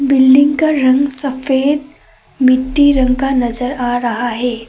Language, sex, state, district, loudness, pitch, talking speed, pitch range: Hindi, female, Assam, Kamrup Metropolitan, -13 LUFS, 265 Hz, 140 wpm, 250-280 Hz